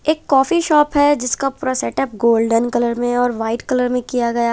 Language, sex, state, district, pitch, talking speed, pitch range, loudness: Hindi, female, Chhattisgarh, Raipur, 250 Hz, 225 wpm, 235-285 Hz, -17 LUFS